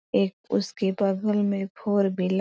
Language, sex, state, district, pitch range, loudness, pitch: Hindi, female, Bihar, East Champaran, 185-200 Hz, -25 LUFS, 195 Hz